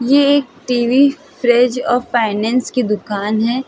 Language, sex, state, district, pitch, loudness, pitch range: Hindi, female, Uttar Pradesh, Hamirpur, 245 Hz, -15 LUFS, 230-265 Hz